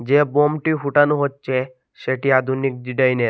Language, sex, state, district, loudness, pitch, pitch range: Bengali, male, Assam, Hailakandi, -19 LUFS, 135 Hz, 130-145 Hz